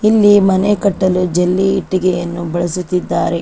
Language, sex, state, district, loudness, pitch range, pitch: Kannada, female, Karnataka, Chamarajanagar, -14 LUFS, 175-195 Hz, 185 Hz